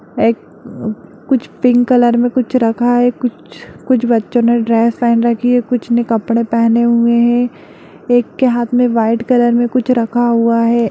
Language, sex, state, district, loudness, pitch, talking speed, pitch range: Hindi, female, Bihar, Darbhanga, -13 LUFS, 235 Hz, 180 wpm, 230-245 Hz